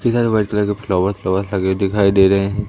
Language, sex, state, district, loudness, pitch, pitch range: Hindi, male, Madhya Pradesh, Umaria, -17 LUFS, 100 Hz, 95-105 Hz